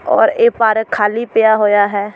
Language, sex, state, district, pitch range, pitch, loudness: Punjabi, female, Delhi, New Delhi, 205-225 Hz, 220 Hz, -13 LUFS